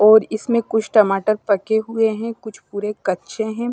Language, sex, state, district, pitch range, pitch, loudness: Hindi, female, Himachal Pradesh, Shimla, 210-225 Hz, 220 Hz, -19 LUFS